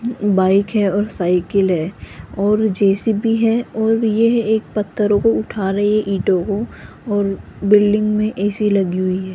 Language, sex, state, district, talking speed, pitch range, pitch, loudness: Hindi, female, Rajasthan, Jaipur, 160 wpm, 195-220 Hz, 205 Hz, -17 LUFS